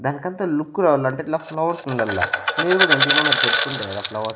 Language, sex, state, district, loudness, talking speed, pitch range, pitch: Telugu, male, Andhra Pradesh, Annamaya, -18 LUFS, 140 wpm, 110-160 Hz, 135 Hz